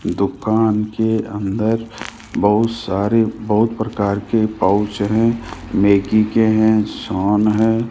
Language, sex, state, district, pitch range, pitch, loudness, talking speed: Hindi, male, Rajasthan, Jaipur, 105-110 Hz, 110 Hz, -17 LUFS, 115 wpm